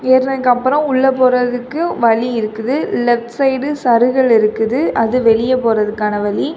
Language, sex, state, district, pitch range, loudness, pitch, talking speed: Tamil, female, Tamil Nadu, Kanyakumari, 225-265 Hz, -14 LUFS, 245 Hz, 130 wpm